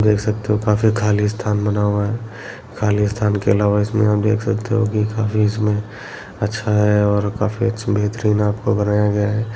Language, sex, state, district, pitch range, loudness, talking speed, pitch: Hindi, male, Bihar, Bhagalpur, 105-110 Hz, -18 LUFS, 180 wpm, 105 Hz